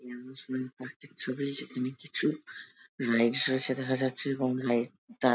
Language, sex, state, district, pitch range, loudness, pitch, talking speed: Bengali, male, West Bengal, Jalpaiguri, 125-135 Hz, -30 LUFS, 130 Hz, 145 wpm